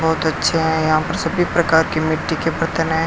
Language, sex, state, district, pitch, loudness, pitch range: Hindi, male, Rajasthan, Bikaner, 160 Hz, -18 LUFS, 160-165 Hz